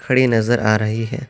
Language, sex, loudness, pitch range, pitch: Urdu, male, -17 LUFS, 110-130 Hz, 115 Hz